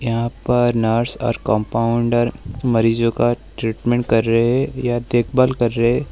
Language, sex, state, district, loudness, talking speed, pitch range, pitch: Hindi, male, Uttar Pradesh, Lalitpur, -18 LUFS, 135 wpm, 115-120 Hz, 120 Hz